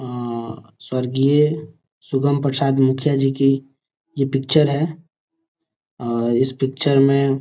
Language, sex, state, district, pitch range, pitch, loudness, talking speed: Hindi, male, Bihar, Gopalganj, 130-150 Hz, 135 Hz, -19 LUFS, 120 wpm